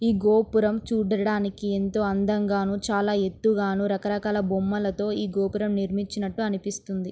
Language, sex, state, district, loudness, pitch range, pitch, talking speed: Telugu, female, Andhra Pradesh, Srikakulam, -25 LUFS, 195-210 Hz, 205 Hz, 110 wpm